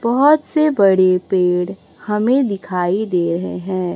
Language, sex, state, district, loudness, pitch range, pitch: Hindi, female, Chhattisgarh, Raipur, -16 LUFS, 180-230 Hz, 190 Hz